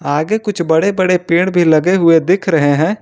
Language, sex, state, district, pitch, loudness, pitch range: Hindi, male, Jharkhand, Ranchi, 170 Hz, -13 LUFS, 160-190 Hz